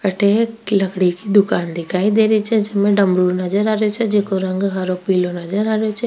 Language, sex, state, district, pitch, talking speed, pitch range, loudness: Rajasthani, female, Rajasthan, Nagaur, 200 Hz, 225 wpm, 185-215 Hz, -17 LUFS